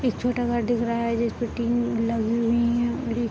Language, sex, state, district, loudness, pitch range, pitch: Hindi, female, Jharkhand, Sahebganj, -24 LUFS, 235-240 Hz, 235 Hz